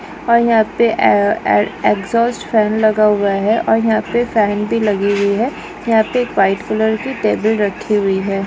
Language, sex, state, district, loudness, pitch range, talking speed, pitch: Hindi, female, Goa, North and South Goa, -15 LUFS, 205-230 Hz, 190 wpm, 220 Hz